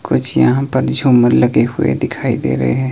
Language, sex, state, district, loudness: Hindi, male, Himachal Pradesh, Shimla, -14 LUFS